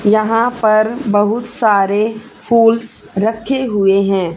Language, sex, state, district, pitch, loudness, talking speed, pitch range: Hindi, female, Haryana, Charkhi Dadri, 220 Hz, -14 LUFS, 110 wpm, 205-230 Hz